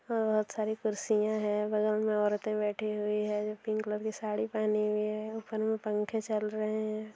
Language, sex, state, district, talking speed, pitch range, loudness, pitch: Hindi, female, Bihar, Gaya, 200 wpm, 210-215 Hz, -32 LUFS, 215 Hz